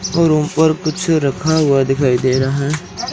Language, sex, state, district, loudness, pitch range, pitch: Hindi, male, Rajasthan, Jaisalmer, -15 LUFS, 135-160 Hz, 150 Hz